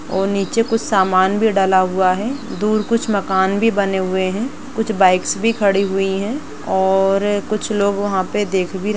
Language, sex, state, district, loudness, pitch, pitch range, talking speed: Hindi, female, Bihar, Gaya, -17 LUFS, 200 Hz, 190-220 Hz, 215 wpm